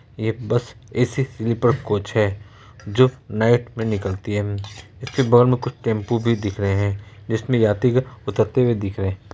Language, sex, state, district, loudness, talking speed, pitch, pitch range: Hindi, male, Bihar, Araria, -21 LUFS, 175 wpm, 110 Hz, 105-125 Hz